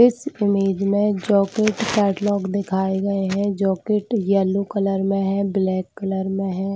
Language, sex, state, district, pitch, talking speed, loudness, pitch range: Hindi, female, Chhattisgarh, Bilaspur, 195 Hz, 150 wpm, -21 LUFS, 195-205 Hz